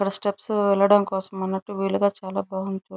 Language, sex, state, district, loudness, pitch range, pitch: Telugu, female, Andhra Pradesh, Chittoor, -23 LUFS, 190-200 Hz, 195 Hz